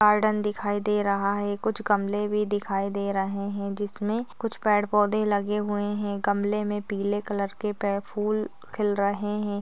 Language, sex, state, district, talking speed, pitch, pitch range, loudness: Hindi, female, Maharashtra, Dhule, 180 wpm, 205 Hz, 200-210 Hz, -27 LUFS